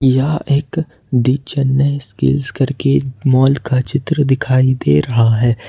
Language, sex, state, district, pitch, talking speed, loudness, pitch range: Hindi, male, Jharkhand, Ranchi, 130 Hz, 135 wpm, -15 LUFS, 120-140 Hz